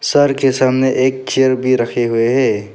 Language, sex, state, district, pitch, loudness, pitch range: Hindi, male, Arunachal Pradesh, Papum Pare, 130 Hz, -14 LUFS, 120-130 Hz